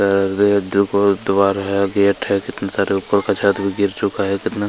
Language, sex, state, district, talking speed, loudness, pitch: Hindi, male, Chhattisgarh, Kabirdham, 230 wpm, -18 LUFS, 100 Hz